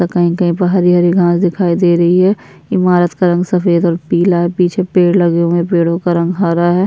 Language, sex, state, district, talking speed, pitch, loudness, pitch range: Hindi, female, Chhattisgarh, Sukma, 225 wpm, 175 Hz, -12 LUFS, 175-180 Hz